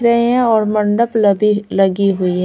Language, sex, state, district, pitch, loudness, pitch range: Hindi, female, Bihar, Patna, 210 Hz, -14 LUFS, 200-230 Hz